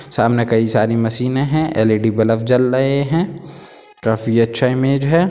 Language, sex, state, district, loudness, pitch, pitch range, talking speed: Hindi, male, Bihar, Sitamarhi, -16 LUFS, 125 Hz, 115-145 Hz, 160 wpm